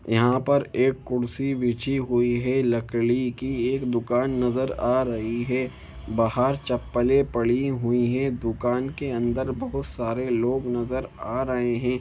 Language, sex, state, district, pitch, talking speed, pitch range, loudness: Hindi, male, Jharkhand, Jamtara, 125 Hz, 150 wpm, 120-130 Hz, -25 LUFS